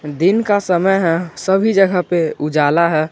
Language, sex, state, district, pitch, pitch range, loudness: Hindi, male, Jharkhand, Garhwa, 175 Hz, 155-195 Hz, -15 LUFS